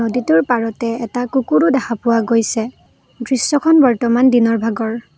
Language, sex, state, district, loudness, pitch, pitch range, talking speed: Assamese, female, Assam, Kamrup Metropolitan, -15 LUFS, 235 Hz, 230-250 Hz, 115 wpm